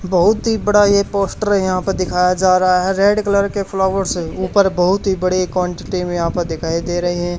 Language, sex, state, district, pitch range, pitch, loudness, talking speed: Hindi, male, Haryana, Charkhi Dadri, 180-200 Hz, 185 Hz, -16 LUFS, 235 wpm